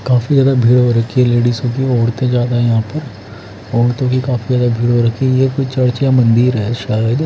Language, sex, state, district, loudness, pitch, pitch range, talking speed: Hindi, male, Haryana, Charkhi Dadri, -14 LUFS, 120 Hz, 115-130 Hz, 230 wpm